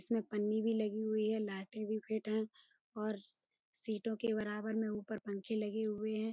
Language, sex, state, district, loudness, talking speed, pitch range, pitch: Hindi, female, Uttar Pradesh, Budaun, -39 LUFS, 210 wpm, 210-220 Hz, 215 Hz